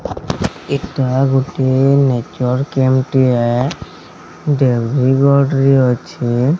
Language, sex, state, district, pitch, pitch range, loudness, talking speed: Odia, male, Odisha, Sambalpur, 130 Hz, 125-135 Hz, -15 LUFS, 75 wpm